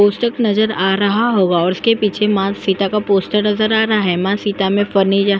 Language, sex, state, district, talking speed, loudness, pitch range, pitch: Hindi, female, Maharashtra, Aurangabad, 220 wpm, -15 LUFS, 195-210 Hz, 205 Hz